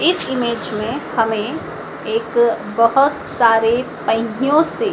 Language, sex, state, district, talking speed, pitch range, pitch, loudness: Hindi, female, Madhya Pradesh, Dhar, 110 wpm, 225-270 Hz, 230 Hz, -17 LUFS